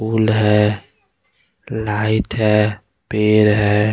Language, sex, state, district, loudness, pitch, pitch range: Hindi, male, Bihar, West Champaran, -16 LUFS, 105 Hz, 105-110 Hz